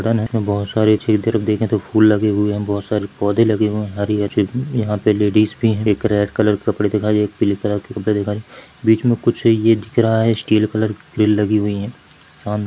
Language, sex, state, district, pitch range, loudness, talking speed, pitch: Hindi, male, Chhattisgarh, Bilaspur, 105-110 Hz, -17 LUFS, 245 wpm, 105 Hz